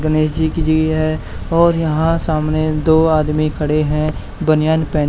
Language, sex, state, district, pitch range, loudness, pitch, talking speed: Hindi, male, Haryana, Charkhi Dadri, 155-160 Hz, -16 LUFS, 155 Hz, 165 wpm